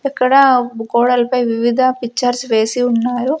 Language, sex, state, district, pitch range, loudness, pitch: Telugu, female, Andhra Pradesh, Sri Satya Sai, 240-255 Hz, -15 LUFS, 245 Hz